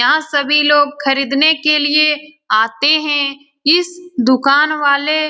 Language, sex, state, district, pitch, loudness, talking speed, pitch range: Hindi, female, Bihar, Lakhisarai, 290 Hz, -13 LUFS, 135 wpm, 280-305 Hz